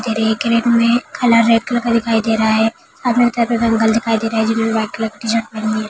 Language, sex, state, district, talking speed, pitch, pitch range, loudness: Hindi, female, Maharashtra, Dhule, 255 wpm, 225 Hz, 220-235 Hz, -16 LUFS